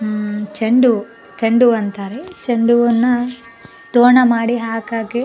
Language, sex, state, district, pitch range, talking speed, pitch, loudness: Kannada, female, Karnataka, Bellary, 225-245 Hz, 150 wpm, 230 Hz, -15 LUFS